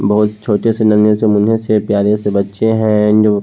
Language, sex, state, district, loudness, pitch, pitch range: Hindi, male, Haryana, Charkhi Dadri, -13 LUFS, 105 Hz, 105-110 Hz